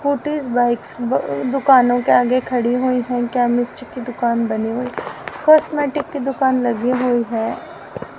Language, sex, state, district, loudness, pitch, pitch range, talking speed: Hindi, female, Haryana, Rohtak, -18 LUFS, 250 Hz, 240-270 Hz, 155 wpm